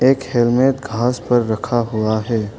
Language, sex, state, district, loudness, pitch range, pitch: Hindi, male, Arunachal Pradesh, Longding, -18 LUFS, 110-125 Hz, 120 Hz